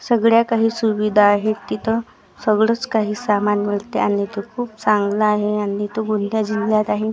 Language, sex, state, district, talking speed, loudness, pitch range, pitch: Marathi, female, Maharashtra, Gondia, 160 wpm, -19 LUFS, 210-225 Hz, 215 Hz